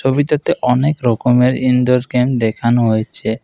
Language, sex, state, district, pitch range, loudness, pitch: Bengali, male, Assam, Kamrup Metropolitan, 120-130 Hz, -15 LUFS, 125 Hz